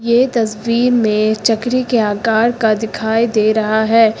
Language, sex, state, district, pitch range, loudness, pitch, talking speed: Hindi, female, Uttar Pradesh, Lucknow, 220-235 Hz, -15 LUFS, 225 Hz, 155 wpm